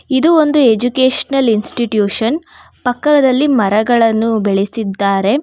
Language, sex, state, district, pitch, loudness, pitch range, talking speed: Kannada, female, Karnataka, Bangalore, 240 Hz, -13 LUFS, 215-275 Hz, 75 wpm